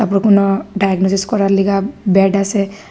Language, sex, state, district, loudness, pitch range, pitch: Bengali, female, Tripura, West Tripura, -14 LUFS, 195-200 Hz, 195 Hz